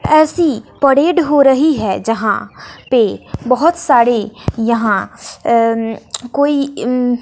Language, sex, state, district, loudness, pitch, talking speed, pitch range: Hindi, female, Bihar, West Champaran, -14 LUFS, 245 Hz, 110 wpm, 225-290 Hz